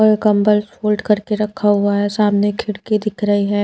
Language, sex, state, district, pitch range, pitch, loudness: Hindi, female, Bihar, Patna, 205-215 Hz, 210 Hz, -17 LUFS